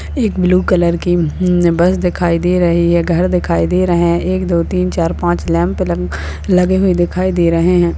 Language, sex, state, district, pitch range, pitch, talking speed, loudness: Hindi, female, Uttarakhand, Tehri Garhwal, 170-180 Hz, 175 Hz, 205 wpm, -14 LUFS